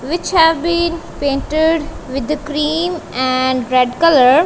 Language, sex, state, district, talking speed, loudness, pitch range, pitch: English, female, Punjab, Kapurthala, 135 wpm, -15 LUFS, 260-330 Hz, 300 Hz